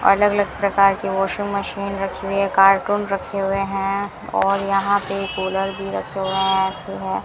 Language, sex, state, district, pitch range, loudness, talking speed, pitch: Hindi, female, Rajasthan, Bikaner, 195-200 Hz, -20 LUFS, 190 wpm, 195 Hz